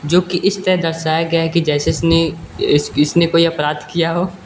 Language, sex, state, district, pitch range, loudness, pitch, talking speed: Hindi, male, Uttar Pradesh, Lucknow, 150-175 Hz, -16 LUFS, 165 Hz, 215 wpm